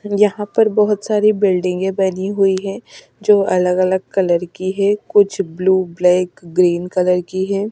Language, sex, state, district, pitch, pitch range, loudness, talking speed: Hindi, female, Delhi, New Delhi, 190 Hz, 180-205 Hz, -16 LUFS, 155 wpm